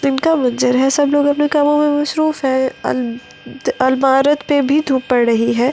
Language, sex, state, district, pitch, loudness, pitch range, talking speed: Hindi, female, Delhi, New Delhi, 275 Hz, -15 LUFS, 255-290 Hz, 190 wpm